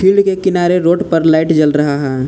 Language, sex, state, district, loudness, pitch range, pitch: Hindi, male, Jharkhand, Palamu, -12 LUFS, 150-185 Hz, 165 Hz